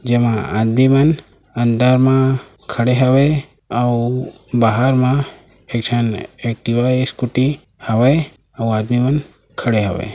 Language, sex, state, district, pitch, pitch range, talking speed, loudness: Chhattisgarhi, male, Chhattisgarh, Raigarh, 120 Hz, 115-130 Hz, 120 wpm, -16 LUFS